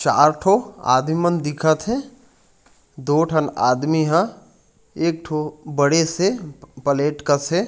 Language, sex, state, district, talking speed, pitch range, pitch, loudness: Chhattisgarhi, male, Chhattisgarh, Raigarh, 135 wpm, 145-175 Hz, 155 Hz, -20 LUFS